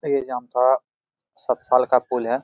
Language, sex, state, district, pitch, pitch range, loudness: Hindi, male, Jharkhand, Jamtara, 125 Hz, 125-130 Hz, -21 LUFS